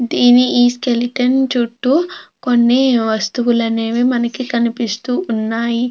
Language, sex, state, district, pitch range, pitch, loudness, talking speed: Telugu, female, Andhra Pradesh, Krishna, 235-250 Hz, 240 Hz, -15 LUFS, 100 wpm